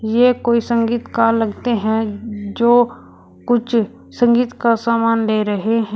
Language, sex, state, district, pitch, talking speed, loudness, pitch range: Hindi, female, Uttar Pradesh, Shamli, 230 Hz, 130 wpm, -17 LUFS, 220-235 Hz